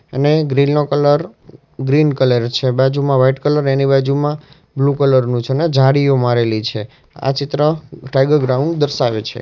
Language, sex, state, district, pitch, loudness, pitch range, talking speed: Gujarati, male, Gujarat, Valsad, 135 Hz, -15 LUFS, 130-145 Hz, 165 wpm